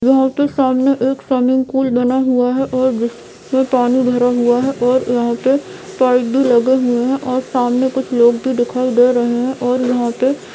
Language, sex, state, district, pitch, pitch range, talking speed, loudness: Hindi, female, Jharkhand, Jamtara, 255 Hz, 245-265 Hz, 200 wpm, -15 LUFS